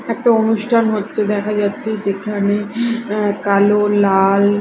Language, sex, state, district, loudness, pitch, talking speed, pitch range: Bengali, female, Odisha, Khordha, -16 LUFS, 210 Hz, 115 wpm, 200-220 Hz